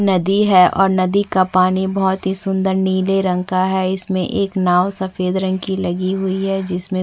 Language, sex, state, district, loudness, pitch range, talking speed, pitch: Hindi, female, Chhattisgarh, Bastar, -17 LUFS, 185-190 Hz, 215 wpm, 190 Hz